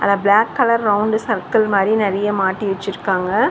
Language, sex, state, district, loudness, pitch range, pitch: Tamil, female, Tamil Nadu, Chennai, -17 LUFS, 195-220 Hz, 205 Hz